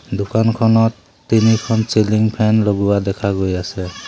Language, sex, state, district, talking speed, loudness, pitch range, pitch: Assamese, male, Assam, Sonitpur, 115 wpm, -16 LUFS, 100-110 Hz, 110 Hz